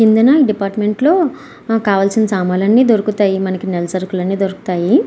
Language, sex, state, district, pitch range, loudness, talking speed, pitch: Telugu, female, Andhra Pradesh, Srikakulam, 190-225 Hz, -14 LUFS, 130 wpm, 205 Hz